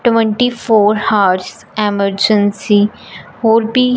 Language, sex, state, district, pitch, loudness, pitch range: Hindi, female, Punjab, Fazilka, 210 Hz, -13 LUFS, 200-225 Hz